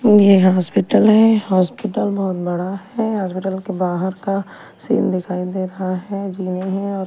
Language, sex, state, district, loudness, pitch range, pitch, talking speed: Hindi, female, Delhi, New Delhi, -18 LUFS, 185-200 Hz, 190 Hz, 160 wpm